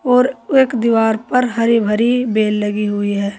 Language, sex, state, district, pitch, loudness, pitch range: Hindi, female, Uttar Pradesh, Saharanpur, 230 Hz, -15 LUFS, 210-250 Hz